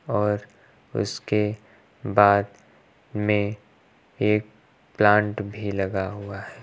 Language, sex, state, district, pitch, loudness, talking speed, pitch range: Hindi, male, Uttar Pradesh, Lucknow, 105 Hz, -24 LUFS, 90 wpm, 100-105 Hz